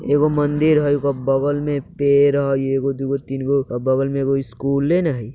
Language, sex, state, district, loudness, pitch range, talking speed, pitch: Hindi, male, Bihar, Muzaffarpur, -19 LUFS, 135-145 Hz, 215 wpm, 140 Hz